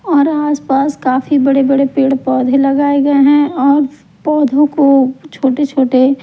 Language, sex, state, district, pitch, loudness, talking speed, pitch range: Hindi, female, Bihar, Patna, 275 Hz, -12 LUFS, 125 wpm, 270-290 Hz